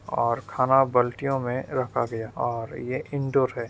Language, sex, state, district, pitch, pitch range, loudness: Hindi, male, Uttar Pradesh, Deoria, 125 Hz, 120-135 Hz, -25 LUFS